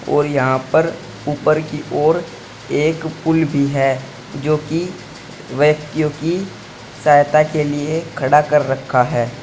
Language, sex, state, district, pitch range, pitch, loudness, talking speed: Hindi, male, Uttar Pradesh, Saharanpur, 140-160 Hz, 150 Hz, -17 LUFS, 135 wpm